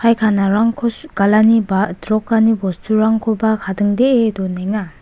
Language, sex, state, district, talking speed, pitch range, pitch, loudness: Garo, female, Meghalaya, West Garo Hills, 85 wpm, 200-225 Hz, 215 Hz, -16 LUFS